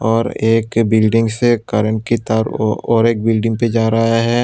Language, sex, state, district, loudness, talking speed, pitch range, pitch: Hindi, male, Tripura, West Tripura, -15 LUFS, 205 wpm, 110-115 Hz, 115 Hz